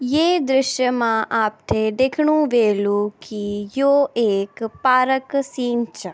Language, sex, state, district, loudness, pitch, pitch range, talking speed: Garhwali, female, Uttarakhand, Tehri Garhwal, -19 LUFS, 240 Hz, 215-265 Hz, 115 wpm